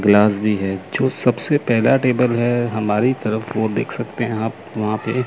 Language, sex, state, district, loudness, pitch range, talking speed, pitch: Hindi, male, Chandigarh, Chandigarh, -19 LUFS, 105-125 Hz, 195 wpm, 115 Hz